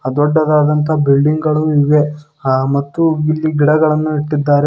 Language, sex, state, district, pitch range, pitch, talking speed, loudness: Kannada, male, Karnataka, Koppal, 145-155 Hz, 150 Hz, 130 wpm, -14 LUFS